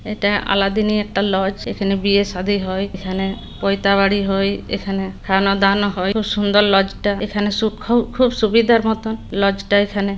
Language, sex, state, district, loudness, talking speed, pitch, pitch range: Bengali, male, West Bengal, Purulia, -18 LUFS, 140 wpm, 200 Hz, 195-210 Hz